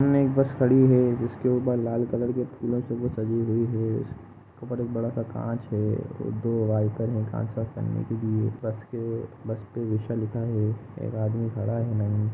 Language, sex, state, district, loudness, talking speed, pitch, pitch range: Hindi, male, Jharkhand, Jamtara, -27 LUFS, 205 wpm, 115 Hz, 110-120 Hz